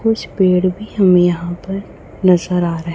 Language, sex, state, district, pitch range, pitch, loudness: Hindi, female, Chhattisgarh, Raipur, 175-195 Hz, 180 Hz, -16 LUFS